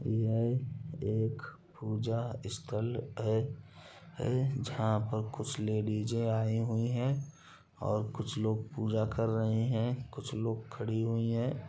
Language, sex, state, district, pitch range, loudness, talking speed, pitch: Hindi, male, Bihar, Gopalganj, 110-130 Hz, -34 LUFS, 130 wpm, 115 Hz